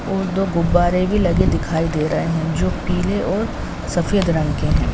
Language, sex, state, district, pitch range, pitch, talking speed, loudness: Hindi, female, Bihar, Saran, 155-185 Hz, 170 Hz, 195 wpm, -19 LUFS